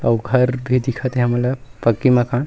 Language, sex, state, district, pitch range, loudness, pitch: Chhattisgarhi, male, Chhattisgarh, Rajnandgaon, 120-130 Hz, -18 LUFS, 125 Hz